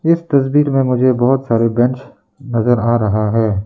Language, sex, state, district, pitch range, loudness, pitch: Hindi, male, Arunachal Pradesh, Lower Dibang Valley, 115-135 Hz, -15 LUFS, 125 Hz